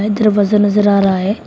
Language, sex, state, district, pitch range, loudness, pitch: Hindi, female, Uttar Pradesh, Shamli, 200-210 Hz, -13 LUFS, 205 Hz